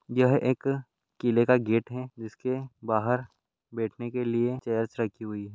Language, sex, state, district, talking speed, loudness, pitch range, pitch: Hindi, male, Rajasthan, Churu, 160 wpm, -28 LUFS, 115-125 Hz, 120 Hz